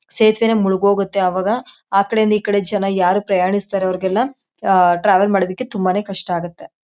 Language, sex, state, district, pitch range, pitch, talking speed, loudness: Kannada, female, Karnataka, Chamarajanagar, 185-210 Hz, 195 Hz, 165 wpm, -17 LUFS